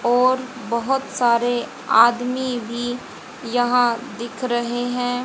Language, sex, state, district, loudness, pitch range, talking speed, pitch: Hindi, female, Haryana, Jhajjar, -20 LUFS, 240-255 Hz, 105 wpm, 245 Hz